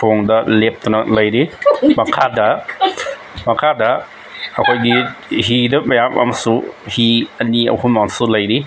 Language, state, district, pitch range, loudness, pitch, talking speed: Manipuri, Manipur, Imphal West, 110-125 Hz, -15 LUFS, 115 Hz, 95 wpm